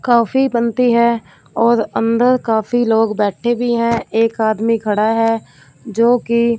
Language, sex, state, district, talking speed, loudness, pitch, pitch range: Hindi, female, Punjab, Fazilka, 145 wpm, -15 LUFS, 230 Hz, 225-235 Hz